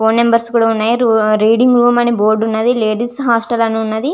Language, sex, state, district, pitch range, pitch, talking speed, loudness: Telugu, female, Andhra Pradesh, Visakhapatnam, 220-240 Hz, 230 Hz, 190 wpm, -13 LUFS